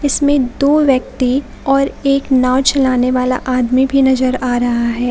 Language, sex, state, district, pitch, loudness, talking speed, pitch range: Hindi, female, Jharkhand, Palamu, 260 Hz, -14 LUFS, 165 wpm, 250-275 Hz